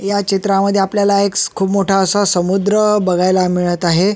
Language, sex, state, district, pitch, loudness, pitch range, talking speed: Marathi, male, Maharashtra, Sindhudurg, 195 Hz, -14 LUFS, 185-200 Hz, 175 wpm